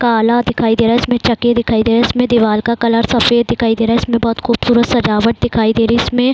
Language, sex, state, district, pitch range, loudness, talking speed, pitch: Hindi, female, Bihar, Saran, 230-240 Hz, -13 LUFS, 275 wpm, 235 Hz